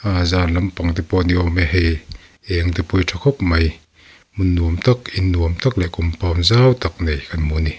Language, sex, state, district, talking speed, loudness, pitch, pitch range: Mizo, male, Mizoram, Aizawl, 240 wpm, -18 LUFS, 90 Hz, 85-95 Hz